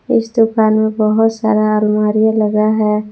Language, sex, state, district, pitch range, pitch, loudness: Hindi, female, Jharkhand, Palamu, 215-220 Hz, 215 Hz, -14 LUFS